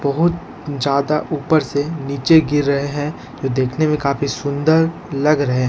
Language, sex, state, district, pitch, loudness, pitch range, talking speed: Hindi, male, Jharkhand, Ranchi, 145 Hz, -18 LUFS, 140-155 Hz, 170 wpm